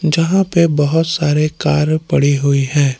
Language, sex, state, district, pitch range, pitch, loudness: Hindi, male, Jharkhand, Palamu, 145-165 Hz, 150 Hz, -14 LUFS